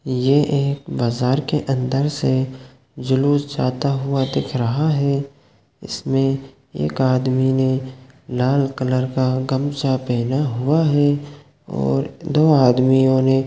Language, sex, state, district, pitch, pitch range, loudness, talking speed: Hindi, male, Chhattisgarh, Sukma, 135 Hz, 130-140 Hz, -19 LUFS, 105 wpm